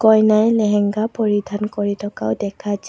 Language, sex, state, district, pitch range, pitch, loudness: Assamese, female, Assam, Kamrup Metropolitan, 205-215 Hz, 210 Hz, -18 LUFS